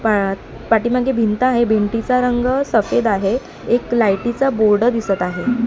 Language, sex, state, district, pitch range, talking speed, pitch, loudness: Marathi, female, Maharashtra, Mumbai Suburban, 215-250 Hz, 135 wpm, 235 Hz, -17 LUFS